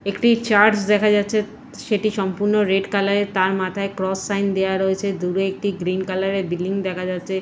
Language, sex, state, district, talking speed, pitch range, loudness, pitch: Bengali, female, West Bengal, Purulia, 170 wpm, 190-205 Hz, -20 LUFS, 195 Hz